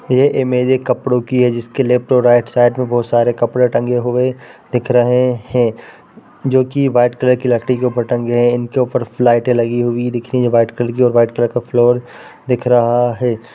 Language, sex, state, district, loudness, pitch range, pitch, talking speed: Hindi, female, Bihar, Darbhanga, -15 LUFS, 120-125 Hz, 125 Hz, 215 wpm